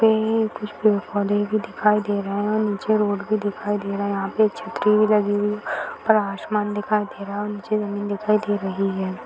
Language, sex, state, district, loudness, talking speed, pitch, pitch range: Hindi, female, Bihar, Sitamarhi, -22 LUFS, 240 wpm, 210 Hz, 205-215 Hz